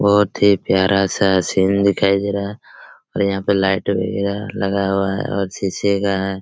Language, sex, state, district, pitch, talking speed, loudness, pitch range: Hindi, male, Chhattisgarh, Raigarh, 100 Hz, 185 wpm, -18 LUFS, 95-100 Hz